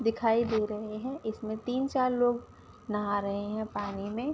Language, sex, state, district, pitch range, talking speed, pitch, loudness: Hindi, female, Uttar Pradesh, Ghazipur, 210-245 Hz, 180 wpm, 220 Hz, -31 LUFS